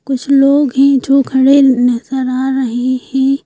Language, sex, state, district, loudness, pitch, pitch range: Hindi, female, Madhya Pradesh, Bhopal, -12 LUFS, 265 Hz, 255-275 Hz